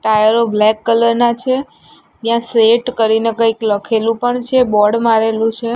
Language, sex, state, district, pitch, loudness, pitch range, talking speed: Gujarati, female, Gujarat, Gandhinagar, 230 Hz, -14 LUFS, 220-235 Hz, 155 wpm